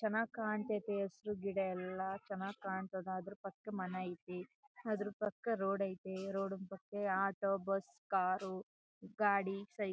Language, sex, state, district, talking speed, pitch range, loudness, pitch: Kannada, female, Karnataka, Chamarajanagar, 135 wpm, 190-205 Hz, -40 LUFS, 195 Hz